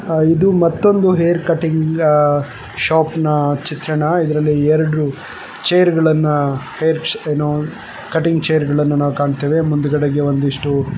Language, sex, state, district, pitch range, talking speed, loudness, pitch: Kannada, male, Karnataka, Chamarajanagar, 145-160 Hz, 95 wpm, -16 LUFS, 155 Hz